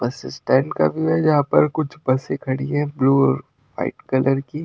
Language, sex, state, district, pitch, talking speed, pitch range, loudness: Hindi, male, Delhi, New Delhi, 135 Hz, 205 wpm, 130-150 Hz, -20 LUFS